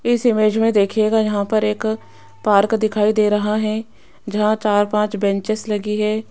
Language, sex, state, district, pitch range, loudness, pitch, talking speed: Hindi, female, Rajasthan, Jaipur, 210-220 Hz, -18 LUFS, 215 Hz, 170 wpm